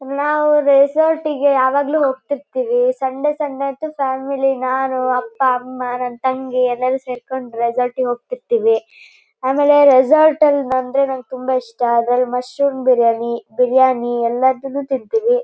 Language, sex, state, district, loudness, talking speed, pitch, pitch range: Kannada, female, Karnataka, Shimoga, -17 LUFS, 115 wpm, 265 Hz, 250-290 Hz